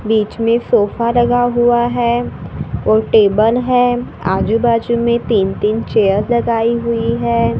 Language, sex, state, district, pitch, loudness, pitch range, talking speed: Hindi, female, Maharashtra, Gondia, 235 Hz, -15 LUFS, 215-240 Hz, 140 wpm